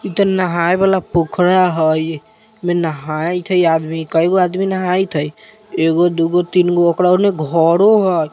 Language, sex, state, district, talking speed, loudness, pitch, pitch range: Bajjika, male, Bihar, Vaishali, 145 wpm, -15 LUFS, 175 Hz, 165-190 Hz